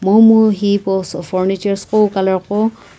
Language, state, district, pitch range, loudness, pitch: Sumi, Nagaland, Kohima, 190-215 Hz, -15 LUFS, 200 Hz